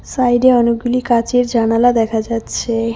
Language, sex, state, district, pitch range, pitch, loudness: Bengali, female, West Bengal, Cooch Behar, 230-245 Hz, 235 Hz, -15 LUFS